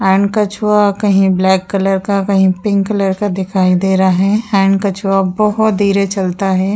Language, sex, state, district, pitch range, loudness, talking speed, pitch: Hindi, female, Uttar Pradesh, Jyotiba Phule Nagar, 190-205 Hz, -13 LUFS, 180 wpm, 195 Hz